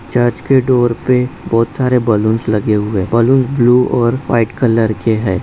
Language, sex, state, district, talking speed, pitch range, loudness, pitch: Hindi, male, Bihar, Jamui, 190 wpm, 110-125 Hz, -13 LUFS, 120 Hz